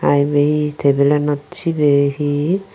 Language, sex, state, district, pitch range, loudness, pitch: Chakma, female, Tripura, Unakoti, 145-150 Hz, -16 LUFS, 145 Hz